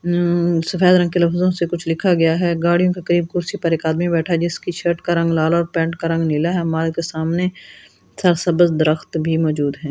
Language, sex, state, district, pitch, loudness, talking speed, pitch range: Hindi, female, Delhi, New Delhi, 170 Hz, -18 LUFS, 235 wpm, 165-175 Hz